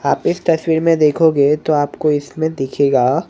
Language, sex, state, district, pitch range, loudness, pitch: Hindi, male, Maharashtra, Mumbai Suburban, 140-160 Hz, -15 LUFS, 150 Hz